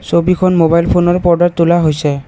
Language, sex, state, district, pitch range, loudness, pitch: Assamese, male, Assam, Kamrup Metropolitan, 165-175 Hz, -12 LUFS, 170 Hz